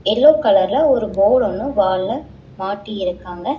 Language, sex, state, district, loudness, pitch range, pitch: Tamil, female, Tamil Nadu, Chennai, -17 LUFS, 190-275 Hz, 200 Hz